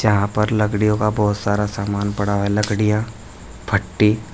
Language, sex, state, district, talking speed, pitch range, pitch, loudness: Hindi, male, Uttar Pradesh, Saharanpur, 165 wpm, 100-105 Hz, 105 Hz, -19 LUFS